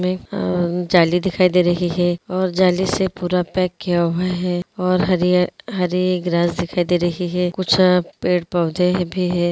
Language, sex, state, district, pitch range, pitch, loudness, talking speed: Hindi, female, Andhra Pradesh, Guntur, 175-185 Hz, 180 Hz, -19 LUFS, 170 wpm